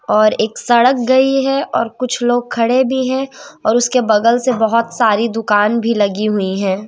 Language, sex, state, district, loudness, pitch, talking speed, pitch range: Hindi, female, Madhya Pradesh, Umaria, -15 LUFS, 230 Hz, 190 wpm, 215-255 Hz